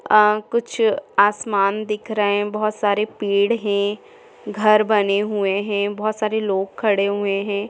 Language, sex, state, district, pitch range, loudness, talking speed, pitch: Hindi, female, Jharkhand, Jamtara, 200-215 Hz, -20 LUFS, 155 wpm, 210 Hz